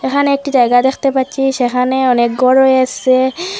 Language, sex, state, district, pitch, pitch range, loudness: Bengali, female, Assam, Hailakandi, 260 Hz, 255-270 Hz, -13 LUFS